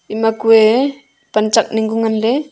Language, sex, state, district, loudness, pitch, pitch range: Wancho, female, Arunachal Pradesh, Longding, -14 LUFS, 225 Hz, 220-230 Hz